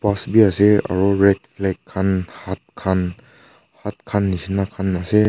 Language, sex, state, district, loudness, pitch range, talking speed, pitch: Nagamese, male, Nagaland, Kohima, -19 LUFS, 95-105 Hz, 145 wpm, 95 Hz